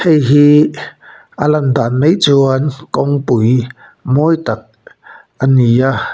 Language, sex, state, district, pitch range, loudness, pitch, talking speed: Mizo, male, Mizoram, Aizawl, 125-150 Hz, -12 LUFS, 135 Hz, 125 wpm